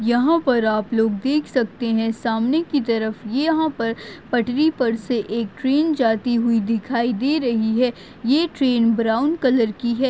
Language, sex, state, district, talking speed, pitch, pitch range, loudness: Hindi, female, Chhattisgarh, Bastar, 165 wpm, 235 Hz, 225-270 Hz, -20 LUFS